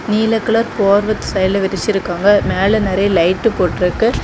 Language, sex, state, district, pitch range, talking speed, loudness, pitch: Tamil, female, Tamil Nadu, Kanyakumari, 190-220 Hz, 125 wpm, -15 LUFS, 200 Hz